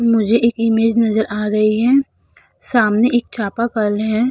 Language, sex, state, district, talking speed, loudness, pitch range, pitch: Hindi, female, Uttar Pradesh, Budaun, 155 wpm, -16 LUFS, 215-235 Hz, 225 Hz